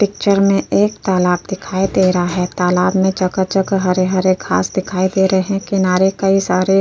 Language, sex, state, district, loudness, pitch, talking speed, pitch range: Hindi, female, Uttar Pradesh, Jyotiba Phule Nagar, -15 LUFS, 190 Hz, 185 wpm, 185-195 Hz